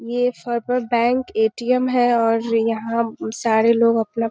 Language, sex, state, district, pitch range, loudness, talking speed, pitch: Hindi, female, Bihar, Muzaffarpur, 225-245 Hz, -19 LUFS, 140 wpm, 230 Hz